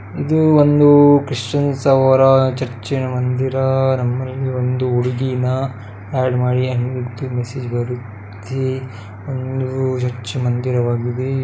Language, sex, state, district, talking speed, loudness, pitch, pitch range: Kannada, male, Karnataka, Dakshina Kannada, 95 wpm, -17 LUFS, 130 Hz, 125-130 Hz